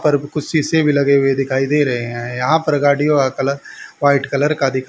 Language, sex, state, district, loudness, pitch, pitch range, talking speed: Hindi, male, Haryana, Rohtak, -16 LUFS, 140 Hz, 135-150 Hz, 235 wpm